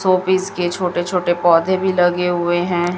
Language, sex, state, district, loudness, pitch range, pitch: Hindi, female, Chhattisgarh, Raipur, -17 LUFS, 175-185 Hz, 180 Hz